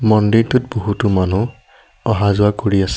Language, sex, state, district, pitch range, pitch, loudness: Assamese, male, Assam, Sonitpur, 100-115 Hz, 105 Hz, -16 LUFS